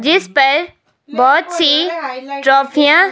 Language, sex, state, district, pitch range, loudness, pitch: Hindi, female, Himachal Pradesh, Shimla, 270-335 Hz, -13 LUFS, 290 Hz